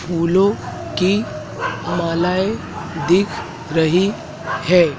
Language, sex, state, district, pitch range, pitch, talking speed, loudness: Hindi, male, Madhya Pradesh, Dhar, 170-190 Hz, 175 Hz, 70 wpm, -19 LUFS